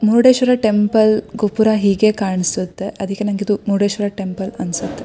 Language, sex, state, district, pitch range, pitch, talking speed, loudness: Kannada, female, Karnataka, Shimoga, 195-215 Hz, 205 Hz, 130 wpm, -17 LUFS